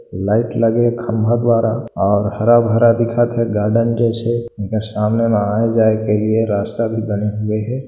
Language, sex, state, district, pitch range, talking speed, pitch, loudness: Hindi, male, Chhattisgarh, Bilaspur, 105-115 Hz, 130 wpm, 115 Hz, -16 LUFS